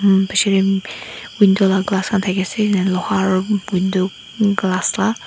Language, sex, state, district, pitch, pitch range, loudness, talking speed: Nagamese, female, Nagaland, Dimapur, 195 Hz, 190-205 Hz, -17 LUFS, 135 wpm